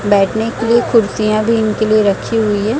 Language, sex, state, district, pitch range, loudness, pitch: Hindi, female, Chhattisgarh, Raipur, 210-225 Hz, -14 LUFS, 215 Hz